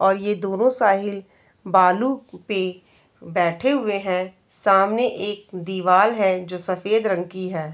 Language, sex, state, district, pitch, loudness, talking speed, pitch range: Hindi, female, Uttar Pradesh, Varanasi, 195 Hz, -21 LUFS, 140 wpm, 185-210 Hz